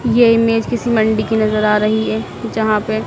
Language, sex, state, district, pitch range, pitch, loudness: Hindi, female, Madhya Pradesh, Dhar, 215-230 Hz, 220 Hz, -15 LUFS